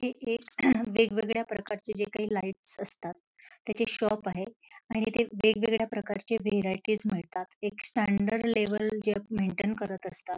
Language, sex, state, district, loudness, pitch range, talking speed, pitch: Marathi, female, Maharashtra, Pune, -30 LUFS, 200-225 Hz, 140 wpm, 215 Hz